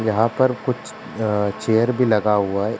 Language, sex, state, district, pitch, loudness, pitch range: Hindi, male, Uttar Pradesh, Ghazipur, 110 Hz, -20 LUFS, 105-120 Hz